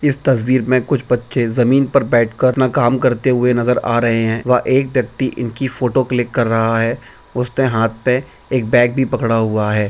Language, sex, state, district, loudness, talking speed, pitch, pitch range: Hindi, male, Bihar, Begusarai, -16 LUFS, 205 wpm, 125 Hz, 115-130 Hz